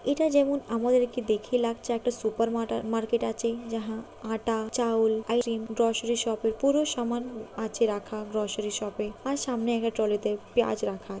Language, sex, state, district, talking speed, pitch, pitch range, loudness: Bengali, female, West Bengal, Kolkata, 150 wpm, 230 Hz, 220-240 Hz, -28 LUFS